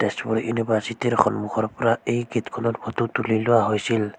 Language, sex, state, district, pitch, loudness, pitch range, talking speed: Assamese, female, Assam, Sonitpur, 115 Hz, -23 LUFS, 110-120 Hz, 160 wpm